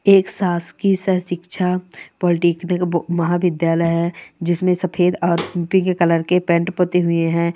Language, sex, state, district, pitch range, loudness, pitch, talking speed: Hindi, male, Chhattisgarh, Bastar, 170-180 Hz, -18 LUFS, 175 Hz, 165 wpm